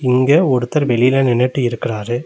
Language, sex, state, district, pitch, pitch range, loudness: Tamil, male, Tamil Nadu, Nilgiris, 125 Hz, 120-135 Hz, -15 LUFS